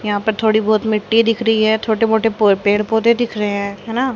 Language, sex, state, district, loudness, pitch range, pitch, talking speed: Hindi, female, Haryana, Charkhi Dadri, -16 LUFS, 210-225 Hz, 220 Hz, 230 wpm